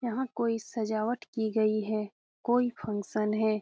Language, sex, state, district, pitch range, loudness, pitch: Hindi, female, Bihar, Jamui, 215-235 Hz, -31 LUFS, 220 Hz